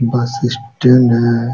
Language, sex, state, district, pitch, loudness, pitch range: Hindi, male, Uttar Pradesh, Jalaun, 120 Hz, -13 LUFS, 120-125 Hz